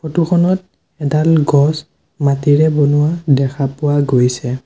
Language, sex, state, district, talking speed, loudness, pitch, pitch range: Assamese, male, Assam, Sonitpur, 115 wpm, -14 LUFS, 145 Hz, 140-160 Hz